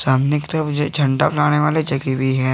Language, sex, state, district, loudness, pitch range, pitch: Hindi, male, Jharkhand, Garhwa, -18 LUFS, 130-150 Hz, 145 Hz